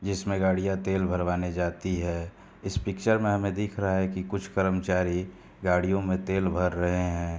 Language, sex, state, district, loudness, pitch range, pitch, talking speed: Hindi, male, Uttar Pradesh, Hamirpur, -28 LUFS, 90-95 Hz, 95 Hz, 180 wpm